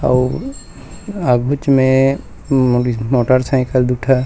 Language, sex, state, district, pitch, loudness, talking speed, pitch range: Chhattisgarhi, male, Chhattisgarh, Rajnandgaon, 130 Hz, -15 LUFS, 125 wpm, 125-135 Hz